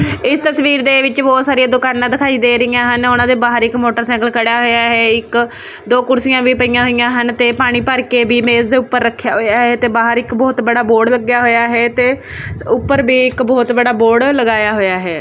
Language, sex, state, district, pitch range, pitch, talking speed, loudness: Punjabi, female, Punjab, Kapurthala, 235-255 Hz, 245 Hz, 215 wpm, -12 LUFS